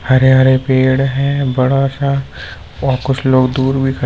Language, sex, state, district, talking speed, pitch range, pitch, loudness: Hindi, male, Uttar Pradesh, Lucknow, 175 wpm, 130-135 Hz, 130 Hz, -13 LUFS